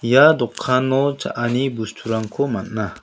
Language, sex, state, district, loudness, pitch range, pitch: Garo, male, Meghalaya, South Garo Hills, -19 LUFS, 115-135 Hz, 125 Hz